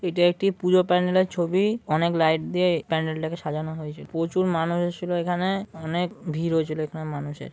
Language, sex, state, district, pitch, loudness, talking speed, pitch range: Bengali, male, West Bengal, Malda, 170 Hz, -25 LUFS, 185 wpm, 160-180 Hz